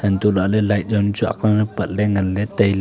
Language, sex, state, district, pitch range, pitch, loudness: Wancho, male, Arunachal Pradesh, Longding, 100-105 Hz, 105 Hz, -19 LUFS